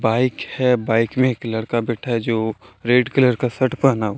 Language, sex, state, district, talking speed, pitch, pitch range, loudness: Hindi, male, Jharkhand, Deoghar, 200 wpm, 120 Hz, 115-130 Hz, -19 LUFS